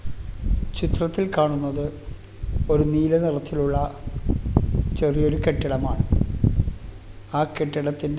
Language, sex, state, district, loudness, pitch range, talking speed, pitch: Malayalam, male, Kerala, Kasaragod, -24 LUFS, 100-150 Hz, 65 wpm, 140 Hz